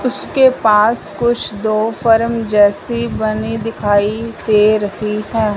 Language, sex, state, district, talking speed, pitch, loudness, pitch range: Hindi, male, Punjab, Fazilka, 120 wpm, 220 Hz, -15 LUFS, 210-230 Hz